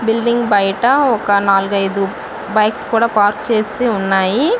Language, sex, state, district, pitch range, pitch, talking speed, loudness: Telugu, female, Andhra Pradesh, Visakhapatnam, 200-235 Hz, 215 Hz, 130 wpm, -15 LUFS